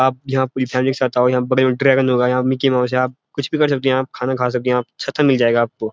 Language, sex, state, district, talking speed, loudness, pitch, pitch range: Hindi, male, Uttarakhand, Uttarkashi, 305 wpm, -17 LUFS, 130 Hz, 125-135 Hz